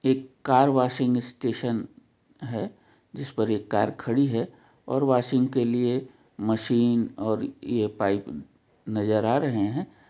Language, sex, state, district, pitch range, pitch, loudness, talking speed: Hindi, male, Jharkhand, Jamtara, 110-130 Hz, 120 Hz, -26 LUFS, 135 wpm